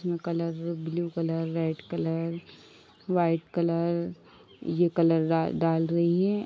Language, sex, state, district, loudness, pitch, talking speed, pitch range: Hindi, female, Uttar Pradesh, Ghazipur, -28 LUFS, 170 Hz, 130 wpm, 165-170 Hz